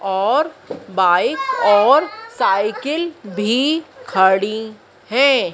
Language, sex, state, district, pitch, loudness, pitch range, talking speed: Hindi, female, Madhya Pradesh, Dhar, 255 Hz, -17 LUFS, 205-310 Hz, 75 wpm